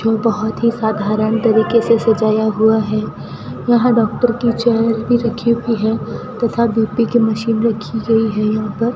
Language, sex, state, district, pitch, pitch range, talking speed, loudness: Hindi, female, Rajasthan, Bikaner, 225 Hz, 220-235 Hz, 175 wpm, -16 LUFS